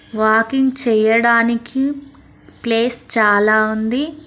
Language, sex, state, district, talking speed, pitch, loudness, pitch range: Telugu, female, Telangana, Mahabubabad, 70 wpm, 230 Hz, -15 LUFS, 220-265 Hz